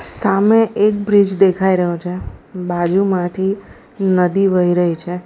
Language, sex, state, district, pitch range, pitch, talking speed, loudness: Gujarati, female, Gujarat, Valsad, 180-195 Hz, 190 Hz, 125 wpm, -16 LUFS